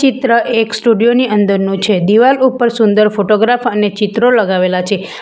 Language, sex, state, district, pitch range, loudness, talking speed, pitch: Gujarati, female, Gujarat, Valsad, 205-240 Hz, -12 LUFS, 160 wpm, 220 Hz